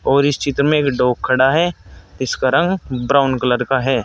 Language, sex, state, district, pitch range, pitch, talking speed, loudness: Hindi, male, Uttar Pradesh, Saharanpur, 130-145 Hz, 135 Hz, 205 wpm, -17 LUFS